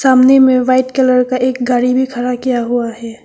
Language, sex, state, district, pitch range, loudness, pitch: Hindi, female, Arunachal Pradesh, Papum Pare, 245-255 Hz, -13 LUFS, 255 Hz